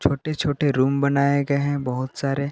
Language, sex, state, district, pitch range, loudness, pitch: Hindi, male, Jharkhand, Palamu, 140-145 Hz, -22 LUFS, 140 Hz